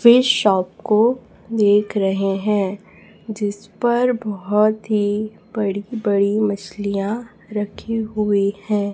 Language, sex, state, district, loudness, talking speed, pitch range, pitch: Hindi, female, Chhattisgarh, Raipur, -20 LUFS, 100 wpm, 200-220 Hz, 210 Hz